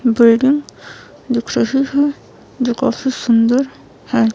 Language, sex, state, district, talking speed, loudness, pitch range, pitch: Hindi, female, Himachal Pradesh, Shimla, 95 wpm, -16 LUFS, 235-270 Hz, 250 Hz